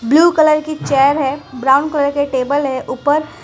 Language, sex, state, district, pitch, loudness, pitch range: Hindi, female, Gujarat, Valsad, 285 Hz, -15 LUFS, 270-305 Hz